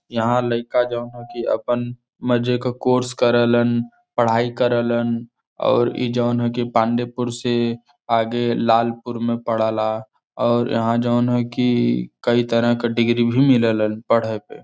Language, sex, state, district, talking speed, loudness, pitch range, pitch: Bhojpuri, male, Uttar Pradesh, Varanasi, 150 wpm, -20 LUFS, 115-120 Hz, 120 Hz